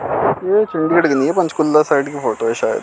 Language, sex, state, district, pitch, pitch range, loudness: Hindi, male, Chandigarh, Chandigarh, 170 Hz, 150-215 Hz, -16 LUFS